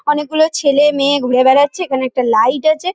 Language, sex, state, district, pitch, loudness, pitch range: Bengali, female, West Bengal, Kolkata, 285 Hz, -13 LUFS, 260-310 Hz